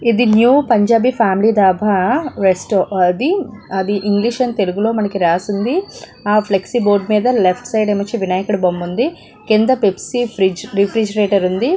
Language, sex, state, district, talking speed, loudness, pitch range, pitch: Telugu, female, Telangana, Nalgonda, 150 wpm, -15 LUFS, 195-235 Hz, 210 Hz